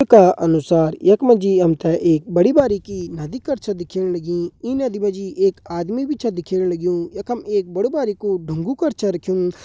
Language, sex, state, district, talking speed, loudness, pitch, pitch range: Hindi, male, Uttarakhand, Uttarkashi, 210 wpm, -19 LUFS, 190 Hz, 175-215 Hz